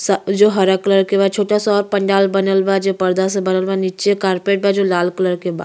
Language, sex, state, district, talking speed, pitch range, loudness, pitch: Bhojpuri, female, Uttar Pradesh, Ghazipur, 265 wpm, 190-200 Hz, -16 LUFS, 195 Hz